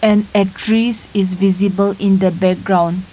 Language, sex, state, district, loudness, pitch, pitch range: English, female, Nagaland, Kohima, -15 LUFS, 195 Hz, 185-205 Hz